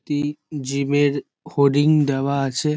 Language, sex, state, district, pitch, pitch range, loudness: Bengali, male, West Bengal, Dakshin Dinajpur, 145 Hz, 140-150 Hz, -20 LUFS